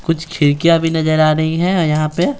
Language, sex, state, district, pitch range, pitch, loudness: Hindi, male, Bihar, Patna, 155-170 Hz, 160 Hz, -15 LUFS